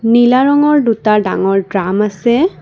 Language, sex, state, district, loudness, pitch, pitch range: Assamese, female, Assam, Kamrup Metropolitan, -12 LUFS, 230 Hz, 195-255 Hz